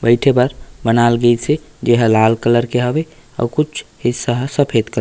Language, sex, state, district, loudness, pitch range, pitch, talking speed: Chhattisgarhi, male, Chhattisgarh, Raigarh, -16 LUFS, 120-140 Hz, 120 Hz, 205 wpm